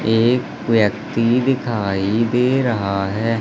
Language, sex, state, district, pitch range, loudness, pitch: Hindi, male, Madhya Pradesh, Katni, 105-125 Hz, -18 LUFS, 115 Hz